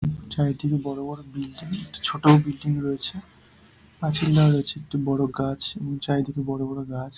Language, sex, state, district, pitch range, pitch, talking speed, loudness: Bengali, male, West Bengal, Purulia, 140-150 Hz, 140 Hz, 135 wpm, -25 LUFS